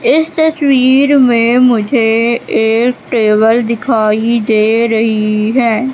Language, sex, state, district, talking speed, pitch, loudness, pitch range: Hindi, female, Madhya Pradesh, Katni, 100 wpm, 235 Hz, -11 LUFS, 220-255 Hz